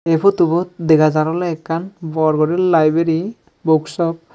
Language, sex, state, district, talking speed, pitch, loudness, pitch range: Chakma, male, Tripura, Dhalai, 180 wpm, 165 Hz, -17 LUFS, 160-175 Hz